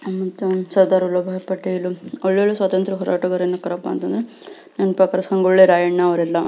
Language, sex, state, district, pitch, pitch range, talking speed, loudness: Kannada, female, Karnataka, Belgaum, 185 Hz, 180-190 Hz, 120 wpm, -18 LUFS